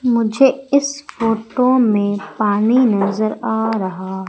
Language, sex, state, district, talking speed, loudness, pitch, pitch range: Hindi, female, Madhya Pradesh, Umaria, 110 wpm, -17 LUFS, 220 Hz, 205-250 Hz